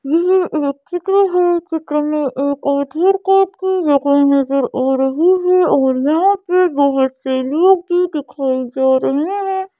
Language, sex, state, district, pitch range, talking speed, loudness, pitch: Hindi, female, Madhya Pradesh, Bhopal, 275-365 Hz, 100 wpm, -15 LUFS, 300 Hz